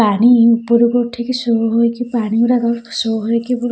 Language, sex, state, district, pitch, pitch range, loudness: Odia, female, Odisha, Khordha, 235 Hz, 230-245 Hz, -15 LUFS